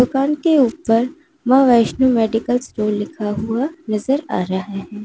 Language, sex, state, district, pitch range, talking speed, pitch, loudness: Hindi, female, Uttar Pradesh, Lalitpur, 210-270 Hz, 155 wpm, 235 Hz, -18 LUFS